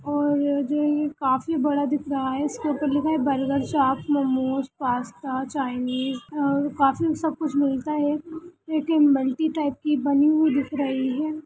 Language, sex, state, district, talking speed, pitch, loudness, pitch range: Hindi, female, Bihar, Gaya, 150 wpm, 285 Hz, -24 LUFS, 270-300 Hz